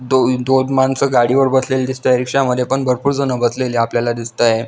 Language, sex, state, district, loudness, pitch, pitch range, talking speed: Marathi, male, Maharashtra, Solapur, -16 LUFS, 130 Hz, 120-130 Hz, 190 wpm